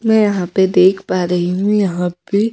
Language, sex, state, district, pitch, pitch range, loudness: Hindi, female, Chhattisgarh, Raipur, 190 Hz, 180-205 Hz, -15 LUFS